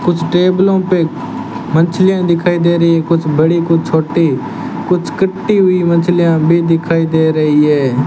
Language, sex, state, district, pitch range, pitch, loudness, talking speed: Hindi, male, Rajasthan, Bikaner, 160-180 Hz, 170 Hz, -13 LUFS, 155 wpm